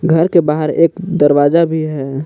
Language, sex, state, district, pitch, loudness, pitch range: Hindi, male, Jharkhand, Palamu, 160 Hz, -13 LUFS, 145-170 Hz